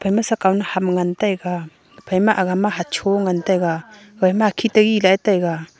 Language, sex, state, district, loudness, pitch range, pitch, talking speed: Wancho, female, Arunachal Pradesh, Longding, -18 LUFS, 180-210 Hz, 190 Hz, 175 wpm